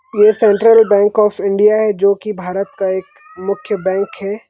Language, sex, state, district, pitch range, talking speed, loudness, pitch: Hindi, male, Chhattisgarh, Sarguja, 195-215 Hz, 175 wpm, -14 LUFS, 205 Hz